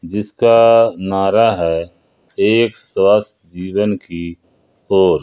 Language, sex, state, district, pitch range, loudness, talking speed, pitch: Hindi, male, Jharkhand, Ranchi, 85-110 Hz, -14 LUFS, 90 wpm, 100 Hz